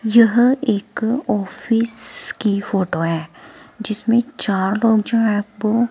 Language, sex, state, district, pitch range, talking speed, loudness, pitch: Hindi, female, Himachal Pradesh, Shimla, 200-230 Hz, 120 wpm, -18 LUFS, 220 Hz